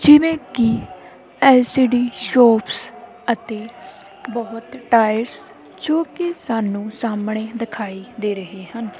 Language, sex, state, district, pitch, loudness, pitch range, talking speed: Punjabi, female, Punjab, Kapurthala, 230 Hz, -19 LUFS, 215-250 Hz, 100 wpm